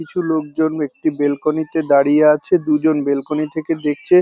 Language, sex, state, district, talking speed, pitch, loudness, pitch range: Bengali, male, West Bengal, North 24 Parganas, 170 wpm, 155 Hz, -17 LUFS, 145-160 Hz